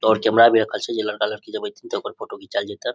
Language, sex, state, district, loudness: Maithili, male, Bihar, Samastipur, -21 LUFS